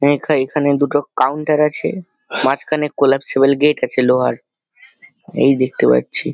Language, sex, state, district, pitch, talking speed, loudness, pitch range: Bengali, male, West Bengal, Paschim Medinipur, 140 Hz, 125 wpm, -16 LUFS, 135-150 Hz